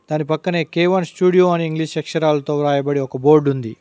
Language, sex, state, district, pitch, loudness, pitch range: Telugu, male, Telangana, Mahabubabad, 155 Hz, -17 LUFS, 145-170 Hz